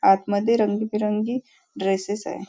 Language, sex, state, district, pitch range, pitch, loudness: Marathi, female, Maharashtra, Nagpur, 200-225 Hz, 210 Hz, -23 LUFS